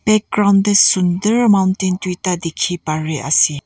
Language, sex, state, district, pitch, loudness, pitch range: Nagamese, female, Nagaland, Kohima, 185 Hz, -15 LUFS, 165-200 Hz